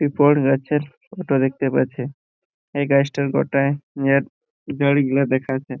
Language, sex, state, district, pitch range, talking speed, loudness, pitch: Bengali, male, West Bengal, Purulia, 135-145 Hz, 115 wpm, -20 LUFS, 140 Hz